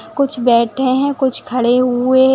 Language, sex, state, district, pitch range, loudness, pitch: Hindi, female, Bihar, Madhepura, 245-265 Hz, -15 LUFS, 255 Hz